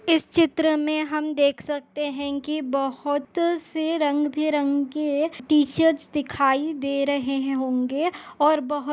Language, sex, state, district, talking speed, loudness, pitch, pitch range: Hindi, female, Chhattisgarh, Bastar, 135 wpm, -23 LUFS, 295 Hz, 280-310 Hz